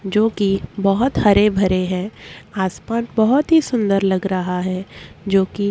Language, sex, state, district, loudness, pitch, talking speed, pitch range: Hindi, female, Chhattisgarh, Korba, -18 LUFS, 200 Hz, 160 wpm, 190-220 Hz